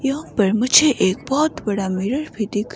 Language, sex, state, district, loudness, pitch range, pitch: Hindi, female, Himachal Pradesh, Shimla, -19 LUFS, 200-280 Hz, 225 Hz